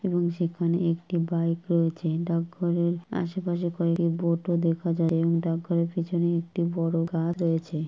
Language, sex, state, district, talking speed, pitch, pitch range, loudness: Bengali, male, West Bengal, Purulia, 130 wpm, 170 Hz, 165-175 Hz, -27 LUFS